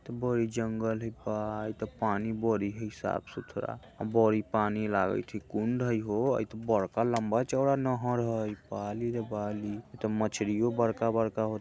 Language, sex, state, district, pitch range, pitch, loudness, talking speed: Bajjika, male, Bihar, Vaishali, 105-115 Hz, 110 Hz, -31 LUFS, 180 wpm